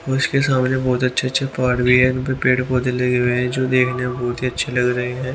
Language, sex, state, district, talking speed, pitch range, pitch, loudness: Hindi, male, Haryana, Rohtak, 245 wpm, 125-130 Hz, 125 Hz, -18 LUFS